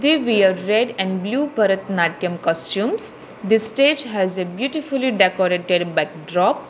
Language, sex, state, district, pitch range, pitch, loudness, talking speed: English, female, Telangana, Hyderabad, 180-245 Hz, 195 Hz, -19 LUFS, 125 wpm